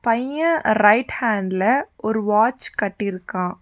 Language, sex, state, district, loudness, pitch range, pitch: Tamil, female, Tamil Nadu, Nilgiris, -20 LUFS, 205-235 Hz, 215 Hz